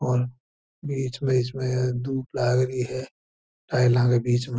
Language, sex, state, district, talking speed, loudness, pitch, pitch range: Marwari, male, Rajasthan, Churu, 170 wpm, -25 LUFS, 125 Hz, 120-130 Hz